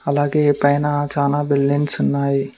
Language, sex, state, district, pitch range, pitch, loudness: Telugu, male, Telangana, Mahabubabad, 140-145 Hz, 145 Hz, -18 LUFS